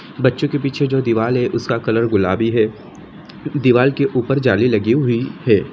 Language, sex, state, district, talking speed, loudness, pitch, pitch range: Hindi, male, Jharkhand, Sahebganj, 180 wpm, -17 LUFS, 125 Hz, 115-135 Hz